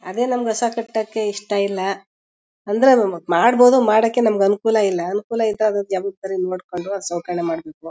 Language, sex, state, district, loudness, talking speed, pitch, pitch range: Kannada, female, Karnataka, Mysore, -19 LUFS, 145 wpm, 205 Hz, 185-225 Hz